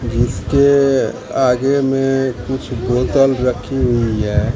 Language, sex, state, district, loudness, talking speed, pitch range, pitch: Hindi, male, Bihar, Katihar, -16 LUFS, 105 wpm, 120-135 Hz, 125 Hz